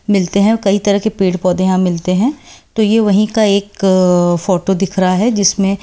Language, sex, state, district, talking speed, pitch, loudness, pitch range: Hindi, female, Delhi, New Delhi, 205 wpm, 195 Hz, -13 LUFS, 185-210 Hz